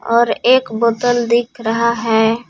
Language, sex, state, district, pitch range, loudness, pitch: Hindi, female, Jharkhand, Palamu, 230-240 Hz, -15 LUFS, 235 Hz